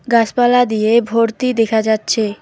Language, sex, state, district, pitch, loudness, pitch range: Bengali, female, West Bengal, Alipurduar, 230 Hz, -15 LUFS, 220-245 Hz